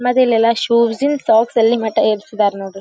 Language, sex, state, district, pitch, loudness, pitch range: Kannada, female, Karnataka, Dharwad, 230 Hz, -15 LUFS, 215-245 Hz